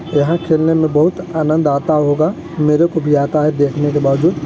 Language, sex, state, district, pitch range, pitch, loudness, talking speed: Hindi, male, Chhattisgarh, Balrampur, 145-160 Hz, 155 Hz, -15 LUFS, 190 wpm